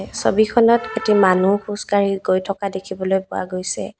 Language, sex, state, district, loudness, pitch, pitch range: Assamese, female, Assam, Kamrup Metropolitan, -19 LUFS, 195 Hz, 190-215 Hz